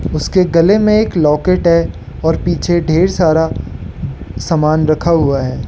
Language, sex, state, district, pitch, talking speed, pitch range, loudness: Hindi, male, Arunachal Pradesh, Lower Dibang Valley, 165 Hz, 150 wpm, 155-175 Hz, -13 LUFS